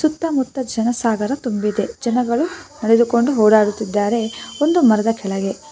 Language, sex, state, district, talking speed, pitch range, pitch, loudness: Kannada, female, Karnataka, Bangalore, 105 wpm, 215-265 Hz, 235 Hz, -18 LUFS